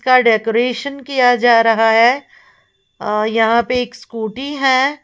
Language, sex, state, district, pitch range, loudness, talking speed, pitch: Hindi, female, Uttar Pradesh, Lalitpur, 225-260 Hz, -15 LUFS, 145 wpm, 245 Hz